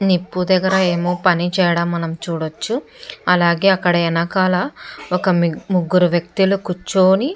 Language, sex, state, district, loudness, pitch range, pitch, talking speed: Telugu, female, Andhra Pradesh, Chittoor, -17 LUFS, 170-190 Hz, 180 Hz, 120 wpm